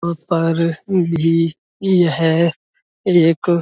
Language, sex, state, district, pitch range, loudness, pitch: Hindi, male, Uttar Pradesh, Budaun, 165-175 Hz, -17 LUFS, 170 Hz